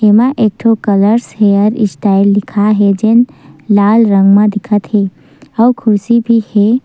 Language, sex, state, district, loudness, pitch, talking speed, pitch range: Chhattisgarhi, female, Chhattisgarh, Sukma, -11 LUFS, 210 Hz, 150 wpm, 200-225 Hz